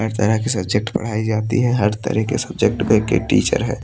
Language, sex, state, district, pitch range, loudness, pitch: Hindi, male, Odisha, Malkangiri, 105-115 Hz, -19 LUFS, 110 Hz